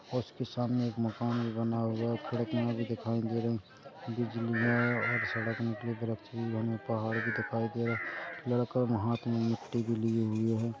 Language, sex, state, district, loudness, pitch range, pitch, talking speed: Hindi, male, Chhattisgarh, Rajnandgaon, -33 LUFS, 115-120 Hz, 115 Hz, 205 wpm